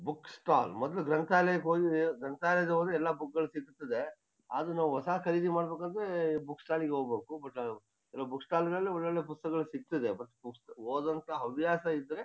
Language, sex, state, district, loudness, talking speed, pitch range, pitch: Kannada, male, Karnataka, Shimoga, -33 LUFS, 165 wpm, 145-170 Hz, 160 Hz